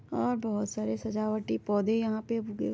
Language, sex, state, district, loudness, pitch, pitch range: Hindi, female, Bihar, Madhepura, -31 LUFS, 215 Hz, 200-220 Hz